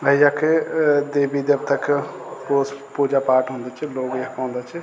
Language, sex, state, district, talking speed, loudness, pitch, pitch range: Garhwali, male, Uttarakhand, Tehri Garhwal, 185 wpm, -21 LUFS, 140 Hz, 130-145 Hz